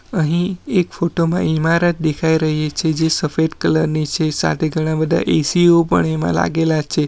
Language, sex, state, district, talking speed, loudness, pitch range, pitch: Gujarati, male, Gujarat, Valsad, 185 wpm, -17 LUFS, 155-170 Hz, 160 Hz